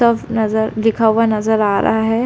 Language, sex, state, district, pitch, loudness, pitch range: Hindi, female, Uttar Pradesh, Deoria, 220 Hz, -16 LUFS, 220-230 Hz